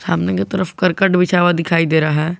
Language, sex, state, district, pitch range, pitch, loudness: Hindi, male, Jharkhand, Garhwa, 155-180 Hz, 170 Hz, -16 LUFS